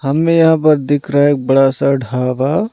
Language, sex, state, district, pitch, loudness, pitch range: Hindi, male, Punjab, Pathankot, 140 Hz, -13 LUFS, 135-155 Hz